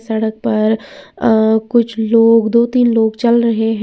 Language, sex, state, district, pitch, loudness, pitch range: Hindi, female, Uttar Pradesh, Lalitpur, 225 Hz, -13 LUFS, 220-235 Hz